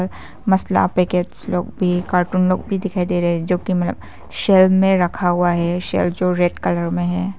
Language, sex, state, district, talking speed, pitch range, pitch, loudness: Hindi, female, Arunachal Pradesh, Papum Pare, 195 wpm, 175-185 Hz, 180 Hz, -18 LUFS